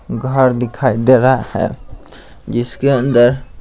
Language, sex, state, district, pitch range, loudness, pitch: Hindi, male, Bihar, Patna, 120-130 Hz, -14 LUFS, 130 Hz